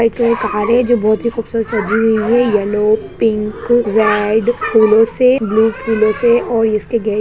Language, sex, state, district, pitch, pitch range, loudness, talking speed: Hindi, female, Bihar, Gaya, 225 Hz, 215-235 Hz, -14 LUFS, 185 wpm